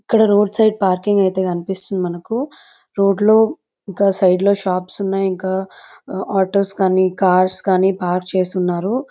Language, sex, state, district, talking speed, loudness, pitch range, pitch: Telugu, female, Andhra Pradesh, Chittoor, 130 wpm, -17 LUFS, 185-205 Hz, 195 Hz